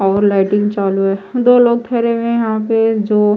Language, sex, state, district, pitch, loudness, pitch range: Hindi, female, Chhattisgarh, Raipur, 215 Hz, -14 LUFS, 200-235 Hz